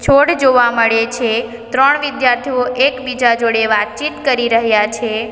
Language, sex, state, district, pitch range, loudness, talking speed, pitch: Gujarati, female, Gujarat, Valsad, 230-265 Hz, -14 LUFS, 135 wpm, 240 Hz